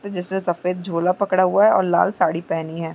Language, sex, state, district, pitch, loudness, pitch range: Hindi, female, Chhattisgarh, Raigarh, 180 Hz, -20 LUFS, 170-190 Hz